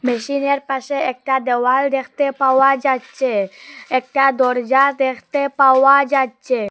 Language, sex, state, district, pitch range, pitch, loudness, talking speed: Bengali, female, Assam, Hailakandi, 255-275 Hz, 265 Hz, -17 LUFS, 105 wpm